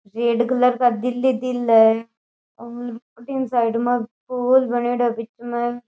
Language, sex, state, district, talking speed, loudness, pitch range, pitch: Rajasthani, female, Rajasthan, Nagaur, 155 wpm, -20 LUFS, 235-250 Hz, 240 Hz